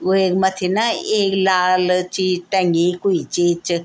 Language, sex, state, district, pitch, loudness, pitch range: Garhwali, female, Uttarakhand, Tehri Garhwal, 185 Hz, -18 LUFS, 180-190 Hz